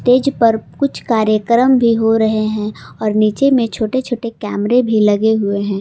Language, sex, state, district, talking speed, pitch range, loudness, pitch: Hindi, female, Jharkhand, Palamu, 175 wpm, 215-245 Hz, -15 LUFS, 225 Hz